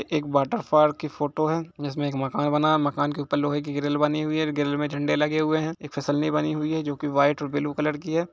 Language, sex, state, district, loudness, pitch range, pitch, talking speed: Hindi, male, Uttar Pradesh, Jalaun, -25 LUFS, 145-155 Hz, 150 Hz, 290 wpm